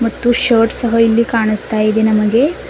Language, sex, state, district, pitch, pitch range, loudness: Kannada, female, Karnataka, Bidar, 230 Hz, 220-235 Hz, -13 LUFS